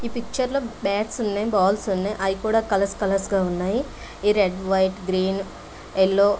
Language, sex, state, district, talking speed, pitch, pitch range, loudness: Telugu, female, Andhra Pradesh, Visakhapatnam, 160 wpm, 200 Hz, 190-220 Hz, -23 LUFS